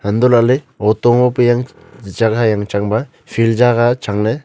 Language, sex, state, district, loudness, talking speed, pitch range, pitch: Wancho, male, Arunachal Pradesh, Longding, -14 LUFS, 160 wpm, 105-125 Hz, 115 Hz